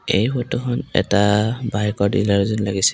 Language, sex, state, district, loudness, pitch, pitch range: Assamese, male, Assam, Kamrup Metropolitan, -19 LUFS, 105 Hz, 100-115 Hz